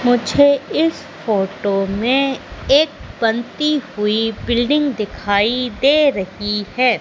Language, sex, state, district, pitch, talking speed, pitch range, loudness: Hindi, female, Madhya Pradesh, Katni, 240 Hz, 105 wpm, 210-280 Hz, -17 LUFS